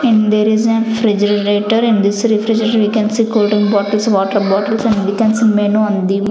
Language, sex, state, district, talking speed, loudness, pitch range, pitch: English, female, Chandigarh, Chandigarh, 230 wpm, -13 LUFS, 205-225 Hz, 215 Hz